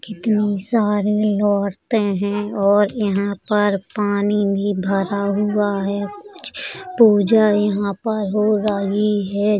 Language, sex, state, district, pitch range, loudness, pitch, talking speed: Hindi, female, Uttar Pradesh, Jalaun, 200-210 Hz, -19 LUFS, 205 Hz, 120 wpm